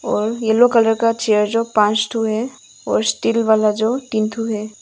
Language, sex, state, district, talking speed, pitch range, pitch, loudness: Hindi, female, Arunachal Pradesh, Longding, 200 wpm, 215-230 Hz, 225 Hz, -17 LUFS